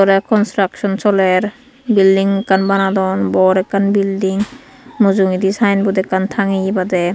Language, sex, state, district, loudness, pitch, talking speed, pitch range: Chakma, female, Tripura, Unakoti, -15 LUFS, 195 Hz, 115 wpm, 190-205 Hz